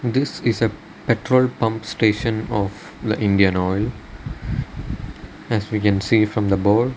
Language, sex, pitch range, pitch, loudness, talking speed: English, male, 105-120 Hz, 110 Hz, -21 LUFS, 145 wpm